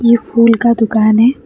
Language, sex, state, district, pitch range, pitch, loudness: Hindi, female, West Bengal, Alipurduar, 225-235 Hz, 230 Hz, -11 LUFS